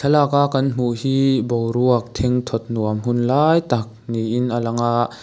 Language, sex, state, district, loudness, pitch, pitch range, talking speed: Mizo, male, Mizoram, Aizawl, -19 LUFS, 120 Hz, 115-135 Hz, 185 wpm